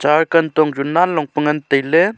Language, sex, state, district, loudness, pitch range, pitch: Wancho, male, Arunachal Pradesh, Longding, -16 LUFS, 150-165 Hz, 155 Hz